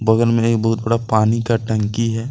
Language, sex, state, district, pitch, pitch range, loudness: Hindi, male, Jharkhand, Deoghar, 115 Hz, 110-115 Hz, -18 LUFS